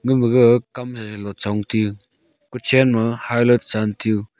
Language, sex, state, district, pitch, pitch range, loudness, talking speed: Wancho, male, Arunachal Pradesh, Longding, 120 Hz, 105-125 Hz, -18 LUFS, 190 wpm